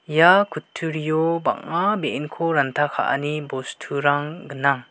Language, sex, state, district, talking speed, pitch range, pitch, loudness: Garo, male, Meghalaya, West Garo Hills, 100 wpm, 140-160 Hz, 150 Hz, -22 LUFS